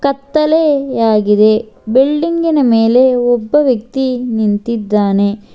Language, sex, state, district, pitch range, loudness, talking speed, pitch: Kannada, female, Karnataka, Bangalore, 215-280 Hz, -13 LUFS, 65 wpm, 245 Hz